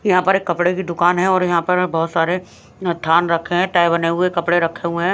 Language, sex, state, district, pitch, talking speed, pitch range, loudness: Hindi, female, Himachal Pradesh, Shimla, 175 Hz, 255 wpm, 170-180 Hz, -17 LUFS